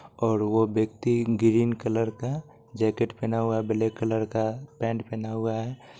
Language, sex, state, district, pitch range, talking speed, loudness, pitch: Maithili, male, Bihar, Supaul, 110-115 Hz, 180 wpm, -27 LUFS, 115 Hz